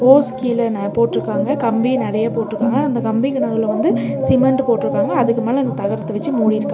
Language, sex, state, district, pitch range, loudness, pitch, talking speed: Tamil, female, Tamil Nadu, Nilgiris, 220-260 Hz, -17 LUFS, 235 Hz, 170 wpm